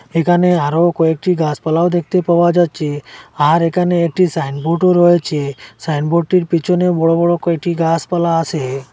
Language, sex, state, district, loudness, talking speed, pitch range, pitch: Bengali, male, Assam, Hailakandi, -15 LUFS, 130 wpm, 160-175 Hz, 170 Hz